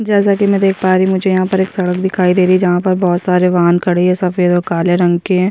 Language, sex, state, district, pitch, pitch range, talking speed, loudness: Hindi, female, Chhattisgarh, Sukma, 185 Hz, 180-190 Hz, 315 wpm, -13 LUFS